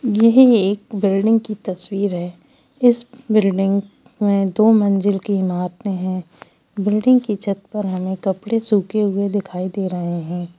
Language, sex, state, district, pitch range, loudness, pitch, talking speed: Hindi, male, Bihar, Lakhisarai, 190-215 Hz, -18 LUFS, 200 Hz, 145 wpm